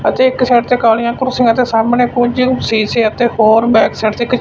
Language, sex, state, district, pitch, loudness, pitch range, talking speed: Punjabi, male, Punjab, Fazilka, 240 Hz, -12 LUFS, 225-250 Hz, 215 wpm